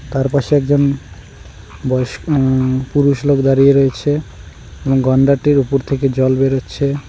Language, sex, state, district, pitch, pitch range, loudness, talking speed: Bengali, male, West Bengal, Cooch Behar, 135 Hz, 130-140 Hz, -15 LUFS, 125 wpm